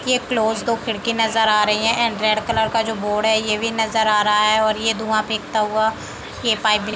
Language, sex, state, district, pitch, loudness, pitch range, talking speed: Hindi, female, Uttar Pradesh, Deoria, 220 Hz, -19 LUFS, 215-225 Hz, 250 wpm